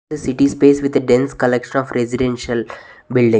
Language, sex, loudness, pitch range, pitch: English, male, -16 LUFS, 120-140 Hz, 125 Hz